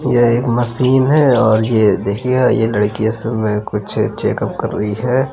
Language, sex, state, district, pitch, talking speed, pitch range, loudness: Hindi, male, Uttar Pradesh, Jalaun, 115 Hz, 170 wpm, 110-125 Hz, -15 LUFS